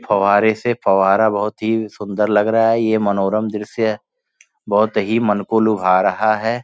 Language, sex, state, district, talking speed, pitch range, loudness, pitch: Hindi, male, Uttar Pradesh, Gorakhpur, 170 wpm, 100-110 Hz, -17 LUFS, 110 Hz